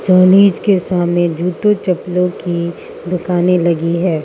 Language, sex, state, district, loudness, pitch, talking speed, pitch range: Hindi, female, Mizoram, Aizawl, -14 LUFS, 180 Hz, 125 wpm, 175-185 Hz